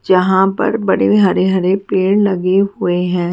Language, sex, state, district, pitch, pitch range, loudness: Hindi, female, Haryana, Charkhi Dadri, 190 Hz, 185-195 Hz, -14 LUFS